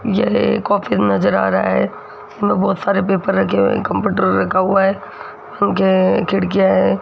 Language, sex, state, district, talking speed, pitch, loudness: Hindi, female, Rajasthan, Jaipur, 170 wpm, 190 Hz, -16 LUFS